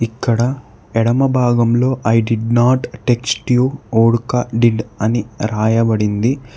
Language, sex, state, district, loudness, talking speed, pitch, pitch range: Telugu, male, Telangana, Hyderabad, -16 LUFS, 110 wpm, 115 Hz, 115-125 Hz